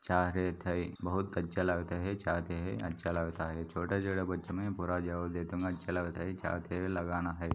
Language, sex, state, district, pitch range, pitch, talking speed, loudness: Hindi, male, Maharashtra, Sindhudurg, 85-90 Hz, 90 Hz, 200 wpm, -36 LUFS